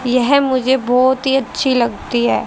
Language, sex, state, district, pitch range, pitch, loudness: Hindi, female, Haryana, Rohtak, 250-265 Hz, 260 Hz, -15 LUFS